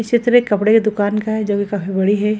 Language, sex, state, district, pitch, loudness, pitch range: Hindi, female, Bihar, Gaya, 210 Hz, -16 LUFS, 205-220 Hz